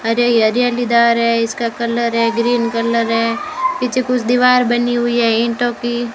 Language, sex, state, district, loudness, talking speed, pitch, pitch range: Hindi, female, Rajasthan, Bikaner, -15 LUFS, 165 wpm, 235 Hz, 230-245 Hz